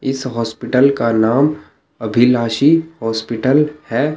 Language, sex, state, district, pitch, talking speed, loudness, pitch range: Hindi, male, Chandigarh, Chandigarh, 125 Hz, 100 wpm, -16 LUFS, 115-145 Hz